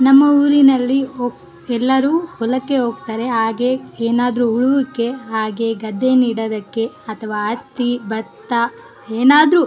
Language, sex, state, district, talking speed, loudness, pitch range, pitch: Kannada, female, Karnataka, Bellary, 100 wpm, -17 LUFS, 225-265 Hz, 245 Hz